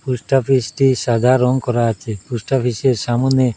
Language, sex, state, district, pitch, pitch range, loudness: Bengali, male, Assam, Hailakandi, 125 Hz, 120-130 Hz, -17 LUFS